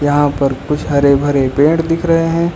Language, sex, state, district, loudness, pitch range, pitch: Hindi, male, Uttar Pradesh, Lucknow, -14 LUFS, 140-165 Hz, 145 Hz